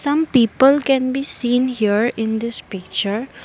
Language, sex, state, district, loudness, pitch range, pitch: English, female, Assam, Kamrup Metropolitan, -18 LUFS, 220-270 Hz, 245 Hz